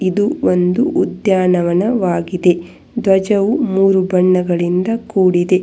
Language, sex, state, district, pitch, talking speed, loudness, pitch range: Kannada, female, Karnataka, Bangalore, 185 Hz, 85 wpm, -15 LUFS, 180-205 Hz